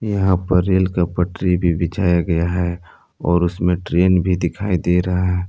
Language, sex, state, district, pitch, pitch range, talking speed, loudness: Hindi, male, Jharkhand, Palamu, 90 Hz, 85-90 Hz, 185 wpm, -18 LUFS